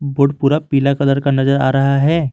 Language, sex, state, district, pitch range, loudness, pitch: Hindi, male, Jharkhand, Garhwa, 135-140 Hz, -15 LUFS, 140 Hz